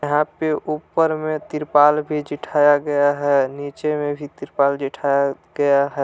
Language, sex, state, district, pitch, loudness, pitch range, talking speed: Hindi, male, Jharkhand, Palamu, 145 Hz, -20 LUFS, 140-150 Hz, 170 wpm